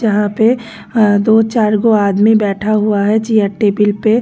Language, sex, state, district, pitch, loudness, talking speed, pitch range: Hindi, female, Delhi, New Delhi, 215 Hz, -13 LUFS, 170 wpm, 205-220 Hz